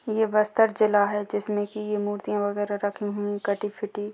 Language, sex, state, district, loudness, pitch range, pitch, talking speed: Hindi, female, Chhattisgarh, Bastar, -26 LUFS, 205-210 Hz, 205 Hz, 205 wpm